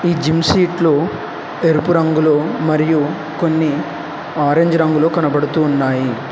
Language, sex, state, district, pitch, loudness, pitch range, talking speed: Telugu, male, Telangana, Hyderabad, 155 Hz, -16 LUFS, 150-165 Hz, 95 wpm